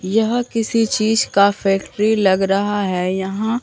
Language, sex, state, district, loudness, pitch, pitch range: Hindi, male, Bihar, Katihar, -17 LUFS, 205 Hz, 195-225 Hz